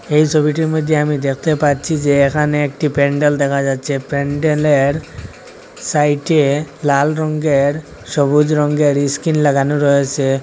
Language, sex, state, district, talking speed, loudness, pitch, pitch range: Bengali, male, Assam, Hailakandi, 120 wpm, -15 LUFS, 145 Hz, 140-155 Hz